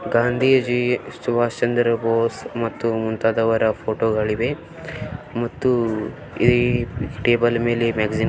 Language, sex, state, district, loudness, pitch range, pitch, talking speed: Kannada, male, Karnataka, Belgaum, -21 LUFS, 115-120 Hz, 115 Hz, 85 wpm